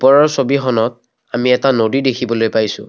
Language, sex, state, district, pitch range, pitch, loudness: Assamese, male, Assam, Kamrup Metropolitan, 115-135 Hz, 125 Hz, -15 LUFS